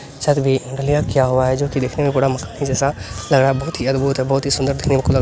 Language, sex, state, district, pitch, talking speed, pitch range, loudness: Hindi, male, Bihar, Lakhisarai, 135 Hz, 320 wpm, 130-140 Hz, -18 LUFS